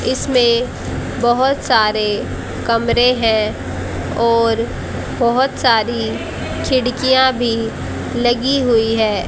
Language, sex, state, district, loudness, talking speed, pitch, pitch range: Hindi, female, Haryana, Jhajjar, -16 LUFS, 85 wpm, 235 Hz, 220-250 Hz